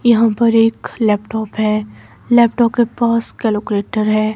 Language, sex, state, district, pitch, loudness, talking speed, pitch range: Hindi, female, Himachal Pradesh, Shimla, 225 Hz, -15 LUFS, 135 wpm, 215-235 Hz